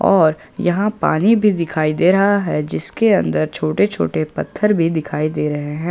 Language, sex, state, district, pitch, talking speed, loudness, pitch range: Hindi, male, Jharkhand, Ranchi, 165 Hz, 185 wpm, -17 LUFS, 150-200 Hz